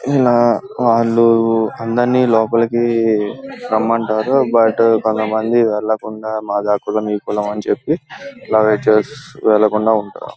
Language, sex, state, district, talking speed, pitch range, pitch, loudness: Telugu, male, Andhra Pradesh, Guntur, 100 wpm, 110-120 Hz, 115 Hz, -15 LUFS